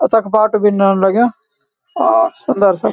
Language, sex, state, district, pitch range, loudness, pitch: Garhwali, male, Uttarakhand, Uttarkashi, 195-240 Hz, -14 LUFS, 215 Hz